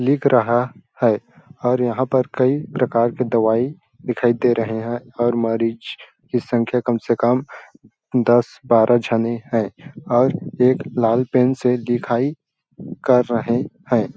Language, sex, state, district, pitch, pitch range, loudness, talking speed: Hindi, male, Chhattisgarh, Balrampur, 125 Hz, 120-130 Hz, -19 LUFS, 150 wpm